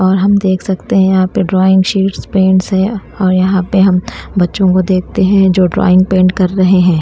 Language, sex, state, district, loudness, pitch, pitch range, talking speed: Hindi, female, Himachal Pradesh, Shimla, -11 LUFS, 190 Hz, 185-190 Hz, 225 wpm